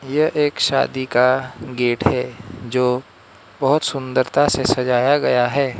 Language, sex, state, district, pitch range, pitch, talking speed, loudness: Hindi, male, Arunachal Pradesh, Lower Dibang Valley, 125-135 Hz, 125 Hz, 135 wpm, -18 LUFS